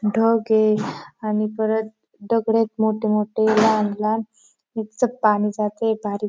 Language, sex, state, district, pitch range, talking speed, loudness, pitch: Marathi, female, Maharashtra, Dhule, 210-220 Hz, 115 wpm, -21 LUFS, 220 Hz